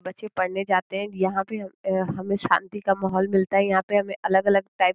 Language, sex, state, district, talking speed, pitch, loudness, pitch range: Hindi, female, Uttar Pradesh, Gorakhpur, 220 wpm, 195 Hz, -24 LUFS, 185-195 Hz